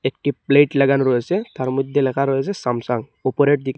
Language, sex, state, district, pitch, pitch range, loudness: Bengali, male, Assam, Hailakandi, 135 Hz, 130-145 Hz, -19 LUFS